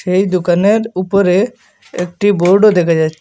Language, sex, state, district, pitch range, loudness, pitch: Bengali, male, Assam, Hailakandi, 175-205 Hz, -13 LUFS, 185 Hz